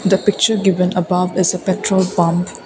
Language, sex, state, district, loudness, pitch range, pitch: English, female, Assam, Kamrup Metropolitan, -16 LUFS, 180-195 Hz, 185 Hz